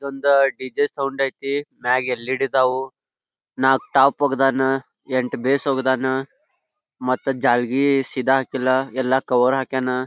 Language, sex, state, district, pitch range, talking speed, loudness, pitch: Kannada, male, Karnataka, Belgaum, 130-135 Hz, 120 wpm, -20 LUFS, 135 Hz